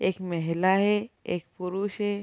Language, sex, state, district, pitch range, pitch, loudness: Hindi, female, Bihar, Kishanganj, 180-205 Hz, 190 Hz, -27 LUFS